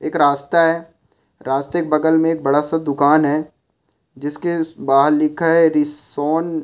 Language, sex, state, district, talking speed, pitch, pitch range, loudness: Hindi, male, Rajasthan, Churu, 155 wpm, 155 Hz, 145-165 Hz, -17 LUFS